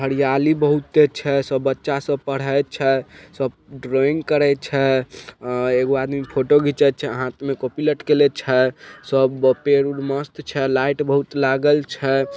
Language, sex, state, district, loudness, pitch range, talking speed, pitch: Maithili, male, Bihar, Samastipur, -19 LUFS, 135-145 Hz, 155 wpm, 140 Hz